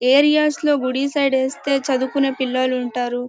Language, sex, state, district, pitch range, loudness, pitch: Telugu, female, Karnataka, Bellary, 255-280 Hz, -19 LUFS, 265 Hz